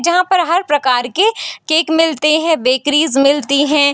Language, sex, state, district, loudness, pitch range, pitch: Hindi, female, Bihar, Sitamarhi, -13 LUFS, 285-330 Hz, 305 Hz